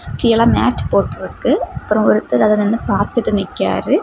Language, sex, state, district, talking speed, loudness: Tamil, female, Tamil Nadu, Kanyakumari, 135 wpm, -16 LUFS